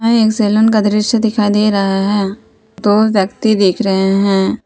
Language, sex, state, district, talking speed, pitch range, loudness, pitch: Hindi, female, Jharkhand, Palamu, 180 wpm, 195-220 Hz, -13 LUFS, 210 Hz